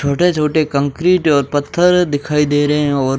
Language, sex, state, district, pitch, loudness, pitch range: Hindi, male, Rajasthan, Jaisalmer, 150 Hz, -15 LUFS, 145-165 Hz